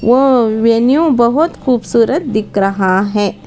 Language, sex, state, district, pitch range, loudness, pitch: Hindi, female, Karnataka, Bangalore, 205-255 Hz, -12 LUFS, 230 Hz